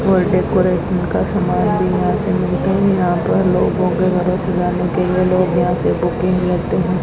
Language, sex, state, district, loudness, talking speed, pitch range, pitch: Hindi, female, Rajasthan, Bikaner, -16 LUFS, 205 wpm, 180-185 Hz, 180 Hz